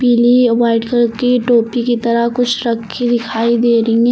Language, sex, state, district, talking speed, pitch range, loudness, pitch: Hindi, female, Uttar Pradesh, Lucknow, 190 wpm, 235-240 Hz, -14 LUFS, 235 Hz